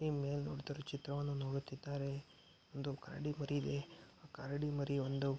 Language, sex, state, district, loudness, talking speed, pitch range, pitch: Kannada, male, Karnataka, Mysore, -42 LUFS, 135 wpm, 140-145 Hz, 140 Hz